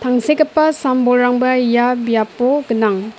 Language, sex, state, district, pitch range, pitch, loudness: Garo, female, Meghalaya, West Garo Hills, 235-260 Hz, 245 Hz, -15 LUFS